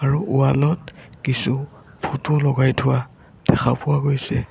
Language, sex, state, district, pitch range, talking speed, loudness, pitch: Assamese, male, Assam, Sonitpur, 130-150 Hz, 135 wpm, -20 LUFS, 140 Hz